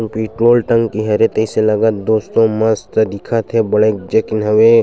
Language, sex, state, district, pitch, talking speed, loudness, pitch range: Chhattisgarhi, male, Chhattisgarh, Sukma, 110 Hz, 150 wpm, -14 LUFS, 110-115 Hz